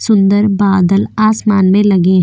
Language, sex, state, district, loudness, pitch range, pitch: Hindi, female, Goa, North and South Goa, -11 LUFS, 190-210 Hz, 200 Hz